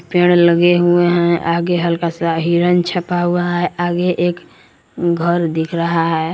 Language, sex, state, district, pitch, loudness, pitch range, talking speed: Hindi, male, Jharkhand, Palamu, 175 Hz, -15 LUFS, 170-175 Hz, 160 wpm